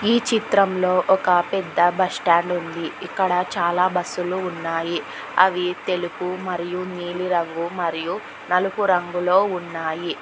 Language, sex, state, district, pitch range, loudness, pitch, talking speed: Telugu, female, Telangana, Hyderabad, 175-185 Hz, -22 LUFS, 180 Hz, 115 wpm